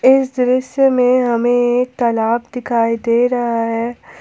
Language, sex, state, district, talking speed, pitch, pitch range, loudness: Hindi, female, Jharkhand, Palamu, 140 wpm, 245 Hz, 235-255 Hz, -16 LUFS